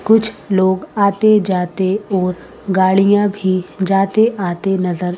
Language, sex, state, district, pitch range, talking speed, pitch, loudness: Hindi, female, Madhya Pradesh, Bhopal, 185-205 Hz, 115 wpm, 195 Hz, -15 LUFS